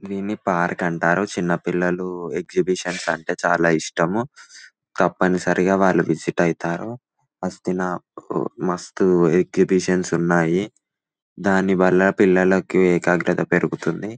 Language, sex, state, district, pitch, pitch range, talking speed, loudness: Telugu, male, Telangana, Nalgonda, 90 Hz, 85-95 Hz, 85 wpm, -20 LUFS